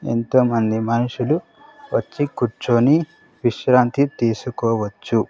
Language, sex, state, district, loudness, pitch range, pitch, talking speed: Telugu, male, Andhra Pradesh, Sri Satya Sai, -20 LUFS, 115-145 Hz, 125 Hz, 80 wpm